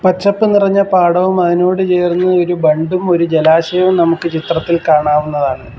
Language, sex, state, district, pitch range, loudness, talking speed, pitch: Malayalam, male, Kerala, Kollam, 160-185 Hz, -12 LUFS, 125 wpm, 175 Hz